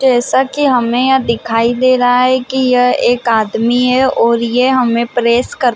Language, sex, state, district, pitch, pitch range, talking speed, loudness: Hindi, female, Chhattisgarh, Bilaspur, 245 Hz, 235-255 Hz, 185 wpm, -12 LUFS